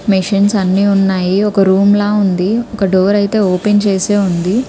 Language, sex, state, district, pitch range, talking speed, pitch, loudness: Telugu, female, Andhra Pradesh, Krishna, 190-205 Hz, 165 wpm, 200 Hz, -12 LUFS